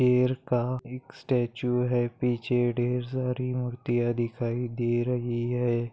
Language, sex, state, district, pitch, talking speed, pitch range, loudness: Hindi, male, Maharashtra, Pune, 125 Hz, 130 wpm, 120-125 Hz, -28 LUFS